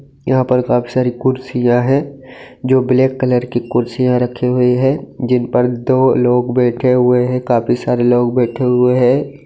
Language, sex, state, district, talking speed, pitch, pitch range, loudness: Hindi, male, Bihar, Gaya, 170 wpm, 125 Hz, 125-130 Hz, -14 LUFS